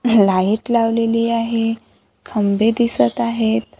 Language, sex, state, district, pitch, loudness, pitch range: Marathi, female, Maharashtra, Gondia, 225 Hz, -17 LUFS, 185-230 Hz